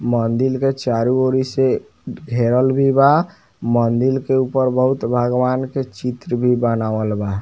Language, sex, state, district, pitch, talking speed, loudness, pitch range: Bhojpuri, male, Bihar, Muzaffarpur, 125 Hz, 145 wpm, -18 LUFS, 120-130 Hz